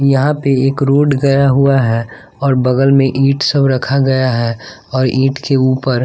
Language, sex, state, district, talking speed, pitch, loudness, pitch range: Hindi, male, Bihar, West Champaran, 190 wpm, 135 Hz, -13 LUFS, 130-140 Hz